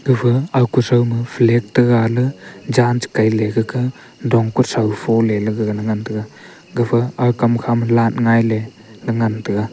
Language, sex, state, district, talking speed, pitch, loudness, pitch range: Wancho, male, Arunachal Pradesh, Longding, 185 wpm, 115 Hz, -17 LUFS, 110-125 Hz